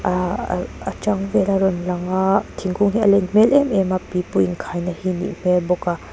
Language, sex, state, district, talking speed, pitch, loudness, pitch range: Mizo, female, Mizoram, Aizawl, 255 wpm, 185 Hz, -20 LUFS, 180-195 Hz